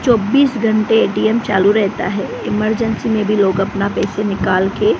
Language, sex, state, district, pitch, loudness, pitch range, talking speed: Hindi, female, Gujarat, Gandhinagar, 210 Hz, -15 LUFS, 200-225 Hz, 170 wpm